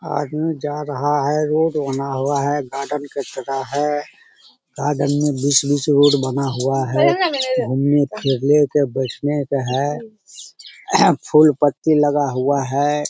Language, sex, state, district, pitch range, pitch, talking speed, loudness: Hindi, male, Bihar, Jamui, 140-150 Hz, 145 Hz, 135 wpm, -18 LUFS